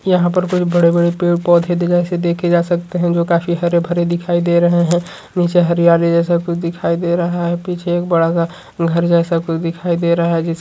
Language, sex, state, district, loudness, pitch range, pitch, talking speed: Hindi, male, Uttarakhand, Uttarkashi, -15 LUFS, 170-175 Hz, 170 Hz, 220 wpm